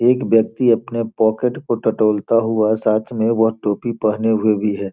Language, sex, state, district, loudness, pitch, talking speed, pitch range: Hindi, male, Bihar, Gopalganj, -18 LUFS, 110 Hz, 180 wpm, 110-115 Hz